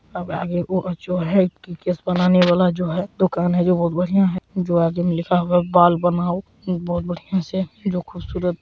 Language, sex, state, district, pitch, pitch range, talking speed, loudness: Hindi, female, Bihar, Darbhanga, 180 Hz, 175-185 Hz, 165 wpm, -20 LUFS